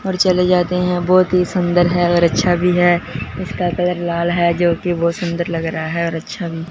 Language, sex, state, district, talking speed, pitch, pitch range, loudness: Hindi, male, Punjab, Fazilka, 230 wpm, 175 Hz, 170-180 Hz, -17 LUFS